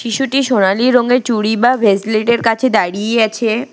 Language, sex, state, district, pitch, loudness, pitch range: Bengali, female, West Bengal, Alipurduar, 230 Hz, -14 LUFS, 215-250 Hz